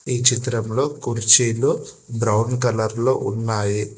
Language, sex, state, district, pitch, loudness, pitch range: Telugu, male, Telangana, Hyderabad, 115 Hz, -19 LUFS, 110-125 Hz